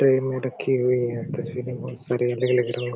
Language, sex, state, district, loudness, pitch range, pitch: Hindi, male, Chhattisgarh, Korba, -24 LUFS, 125-130 Hz, 125 Hz